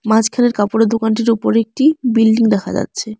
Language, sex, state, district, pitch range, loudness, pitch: Bengali, female, West Bengal, Alipurduar, 220-235 Hz, -15 LUFS, 225 Hz